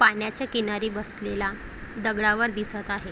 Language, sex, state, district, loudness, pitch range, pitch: Marathi, female, Maharashtra, Chandrapur, -27 LUFS, 205-220 Hz, 210 Hz